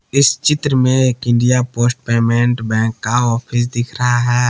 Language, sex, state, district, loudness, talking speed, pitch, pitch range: Hindi, male, Jharkhand, Palamu, -15 LUFS, 175 wpm, 120 Hz, 120-125 Hz